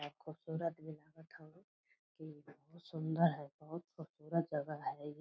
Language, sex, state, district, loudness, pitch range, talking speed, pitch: Hindi, female, Bihar, Purnia, -41 LUFS, 150-165 Hz, 125 wpm, 160 Hz